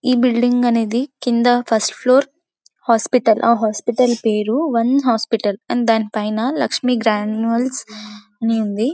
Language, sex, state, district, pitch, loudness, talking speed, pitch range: Telugu, female, Telangana, Karimnagar, 235 Hz, -17 LUFS, 135 wpm, 220-250 Hz